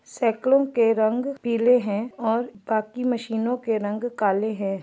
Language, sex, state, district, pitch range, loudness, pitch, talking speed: Hindi, female, Chhattisgarh, Bastar, 215-245 Hz, -23 LUFS, 230 Hz, 135 wpm